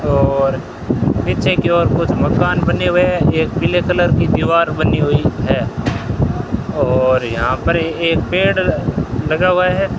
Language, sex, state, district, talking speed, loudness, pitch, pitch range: Hindi, male, Rajasthan, Bikaner, 150 wpm, -15 LUFS, 150 Hz, 130-170 Hz